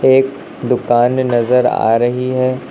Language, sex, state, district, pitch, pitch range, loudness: Hindi, male, Uttar Pradesh, Lucknow, 125 Hz, 120-130 Hz, -14 LUFS